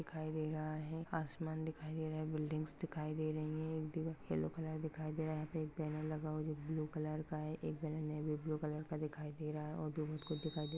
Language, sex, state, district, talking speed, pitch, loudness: Hindi, male, Maharashtra, Pune, 135 wpm, 155 Hz, -43 LUFS